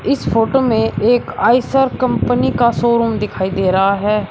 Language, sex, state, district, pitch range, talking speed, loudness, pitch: Hindi, male, Uttar Pradesh, Shamli, 195-240 Hz, 165 wpm, -15 LUFS, 225 Hz